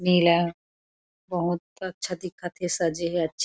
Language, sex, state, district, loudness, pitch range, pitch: Chhattisgarhi, female, Chhattisgarh, Korba, -26 LUFS, 170-180 Hz, 175 Hz